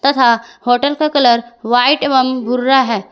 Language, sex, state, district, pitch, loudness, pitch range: Hindi, female, Jharkhand, Garhwa, 250 Hz, -13 LUFS, 235-270 Hz